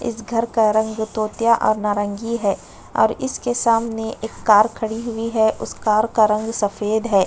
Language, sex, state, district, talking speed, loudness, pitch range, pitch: Hindi, female, Uttar Pradesh, Budaun, 180 wpm, -20 LUFS, 215-230 Hz, 220 Hz